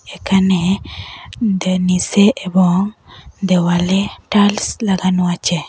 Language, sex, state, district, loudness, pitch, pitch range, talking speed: Bengali, female, Assam, Hailakandi, -16 LUFS, 190 Hz, 180-200 Hz, 75 wpm